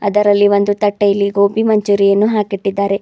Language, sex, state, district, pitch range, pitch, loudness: Kannada, female, Karnataka, Bidar, 200-205 Hz, 205 Hz, -14 LUFS